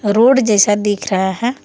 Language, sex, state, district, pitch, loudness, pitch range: Hindi, female, Jharkhand, Palamu, 210 Hz, -14 LUFS, 205-240 Hz